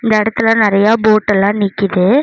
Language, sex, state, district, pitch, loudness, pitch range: Tamil, female, Tamil Nadu, Namakkal, 215 Hz, -12 LUFS, 200-225 Hz